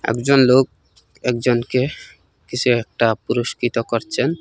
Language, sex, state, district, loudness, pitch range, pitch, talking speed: Bengali, male, Assam, Hailakandi, -19 LUFS, 115-125 Hz, 120 Hz, 95 wpm